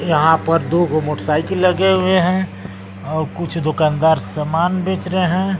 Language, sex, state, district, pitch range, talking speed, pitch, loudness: Hindi, male, Bihar, West Champaran, 155-185 Hz, 160 wpm, 165 Hz, -17 LUFS